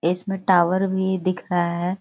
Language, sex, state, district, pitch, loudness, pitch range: Hindi, female, Bihar, Jahanabad, 185 Hz, -21 LUFS, 175-190 Hz